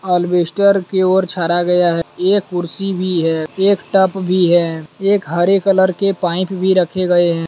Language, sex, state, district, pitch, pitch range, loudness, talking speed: Hindi, male, Jharkhand, Deoghar, 185 Hz, 175-190 Hz, -15 LUFS, 185 wpm